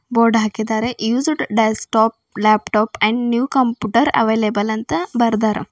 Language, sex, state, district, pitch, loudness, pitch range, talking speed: Kannada, female, Karnataka, Bidar, 225 Hz, -17 LUFS, 215-235 Hz, 115 wpm